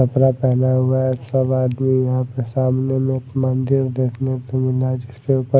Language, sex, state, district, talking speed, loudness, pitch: Hindi, male, Odisha, Malkangiri, 150 wpm, -19 LUFS, 130 Hz